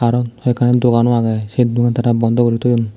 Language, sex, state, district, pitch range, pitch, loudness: Chakma, male, Tripura, Dhalai, 115-120 Hz, 120 Hz, -15 LUFS